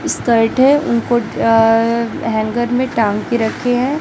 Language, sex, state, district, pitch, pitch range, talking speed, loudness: Hindi, female, Chhattisgarh, Raipur, 235 Hz, 225-245 Hz, 135 wpm, -15 LUFS